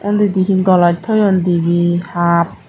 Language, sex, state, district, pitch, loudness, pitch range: Chakma, female, Tripura, Dhalai, 180 Hz, -14 LUFS, 175-195 Hz